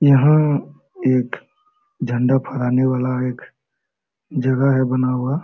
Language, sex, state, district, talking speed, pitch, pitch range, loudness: Hindi, male, Jharkhand, Sahebganj, 120 wpm, 130 Hz, 125-145 Hz, -19 LUFS